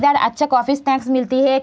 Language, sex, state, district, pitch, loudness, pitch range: Hindi, female, Bihar, Madhepura, 265 Hz, -17 LUFS, 255-275 Hz